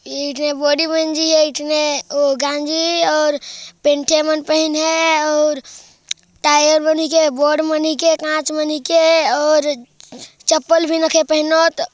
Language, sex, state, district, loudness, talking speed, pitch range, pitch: Hindi, male, Chhattisgarh, Jashpur, -15 LUFS, 130 wpm, 295-320 Hz, 310 Hz